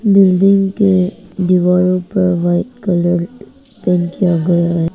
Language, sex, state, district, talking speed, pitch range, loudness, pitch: Hindi, female, Arunachal Pradesh, Papum Pare, 120 wpm, 175-190 Hz, -14 LUFS, 180 Hz